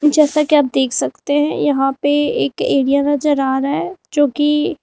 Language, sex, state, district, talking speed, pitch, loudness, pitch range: Hindi, female, Uttar Pradesh, Lalitpur, 185 wpm, 290 Hz, -16 LUFS, 275-300 Hz